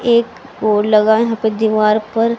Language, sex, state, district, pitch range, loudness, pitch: Hindi, female, Haryana, Rohtak, 215-235 Hz, -15 LUFS, 220 Hz